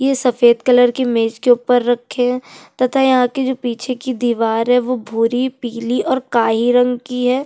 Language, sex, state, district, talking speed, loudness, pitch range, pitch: Hindi, female, Chhattisgarh, Sukma, 200 wpm, -16 LUFS, 240-255 Hz, 245 Hz